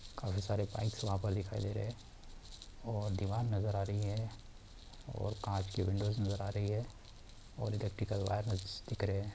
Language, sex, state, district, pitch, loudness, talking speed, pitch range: Hindi, male, Bihar, Bhagalpur, 105 Hz, -38 LUFS, 180 wpm, 100-110 Hz